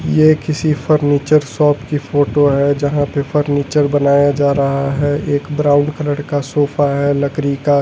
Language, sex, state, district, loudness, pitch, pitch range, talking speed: Hindi, male, Delhi, New Delhi, -15 LUFS, 145 Hz, 140-150 Hz, 170 wpm